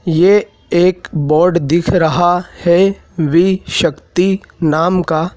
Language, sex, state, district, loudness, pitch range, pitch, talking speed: Hindi, male, Madhya Pradesh, Dhar, -14 LUFS, 160-180 Hz, 175 Hz, 110 wpm